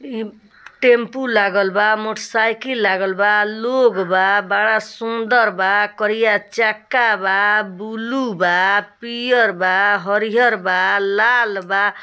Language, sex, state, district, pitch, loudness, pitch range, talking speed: Bhojpuri, female, Bihar, East Champaran, 210 Hz, -16 LUFS, 200-230 Hz, 125 wpm